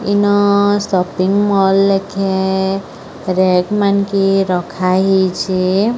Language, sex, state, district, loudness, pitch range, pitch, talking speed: Odia, female, Odisha, Sambalpur, -14 LUFS, 185-200 Hz, 195 Hz, 90 wpm